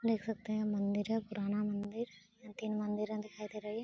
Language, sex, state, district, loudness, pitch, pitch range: Hindi, female, Bihar, Saran, -38 LUFS, 210 Hz, 210-220 Hz